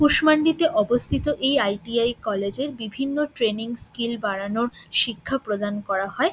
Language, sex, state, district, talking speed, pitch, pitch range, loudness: Bengali, female, West Bengal, Dakshin Dinajpur, 150 wpm, 235 Hz, 210-280 Hz, -23 LUFS